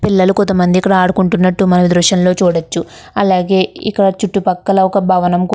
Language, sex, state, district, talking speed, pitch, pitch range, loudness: Telugu, female, Andhra Pradesh, Krishna, 160 wpm, 190 Hz, 180-195 Hz, -13 LUFS